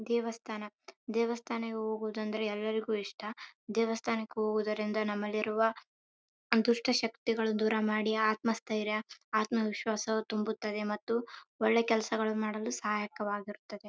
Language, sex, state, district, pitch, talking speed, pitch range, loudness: Kannada, female, Karnataka, Raichur, 220 Hz, 40 wpm, 215-230 Hz, -33 LUFS